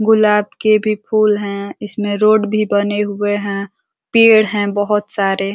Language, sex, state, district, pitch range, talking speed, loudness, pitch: Hindi, female, Uttar Pradesh, Ghazipur, 205-215 Hz, 160 wpm, -15 LUFS, 210 Hz